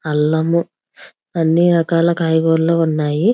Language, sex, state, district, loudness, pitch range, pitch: Telugu, female, Andhra Pradesh, Visakhapatnam, -16 LUFS, 160-170 Hz, 165 Hz